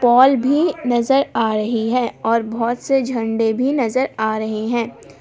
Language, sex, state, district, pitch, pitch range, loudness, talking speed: Hindi, female, Jharkhand, Palamu, 240 Hz, 225-260 Hz, -18 LUFS, 175 wpm